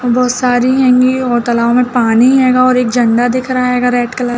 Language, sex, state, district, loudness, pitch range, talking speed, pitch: Hindi, female, Uttar Pradesh, Varanasi, -11 LUFS, 245-255 Hz, 235 wpm, 250 Hz